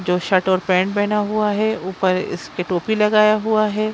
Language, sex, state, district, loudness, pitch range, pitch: Hindi, female, Bihar, Jamui, -18 LUFS, 185-215 Hz, 205 Hz